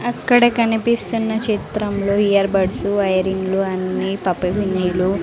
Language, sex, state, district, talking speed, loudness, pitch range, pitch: Telugu, female, Andhra Pradesh, Sri Satya Sai, 125 wpm, -18 LUFS, 190-220 Hz, 200 Hz